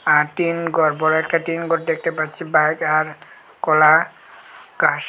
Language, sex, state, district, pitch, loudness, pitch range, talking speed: Bengali, male, Tripura, Unakoti, 160 Hz, -18 LUFS, 155-165 Hz, 140 wpm